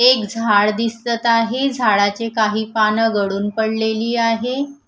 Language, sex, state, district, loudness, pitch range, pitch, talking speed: Marathi, female, Maharashtra, Gondia, -17 LUFS, 215-235 Hz, 225 Hz, 125 wpm